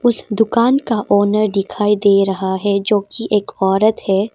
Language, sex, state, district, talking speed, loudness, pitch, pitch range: Hindi, female, Arunachal Pradesh, Papum Pare, 180 wpm, -16 LUFS, 210 Hz, 195-225 Hz